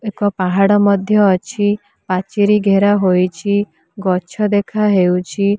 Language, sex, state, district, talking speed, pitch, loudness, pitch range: Odia, female, Odisha, Nuapada, 95 wpm, 200 Hz, -15 LUFS, 185-205 Hz